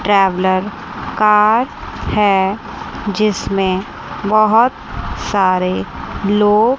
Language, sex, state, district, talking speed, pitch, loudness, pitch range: Hindi, female, Chandigarh, Chandigarh, 60 wpm, 205 Hz, -15 LUFS, 190-215 Hz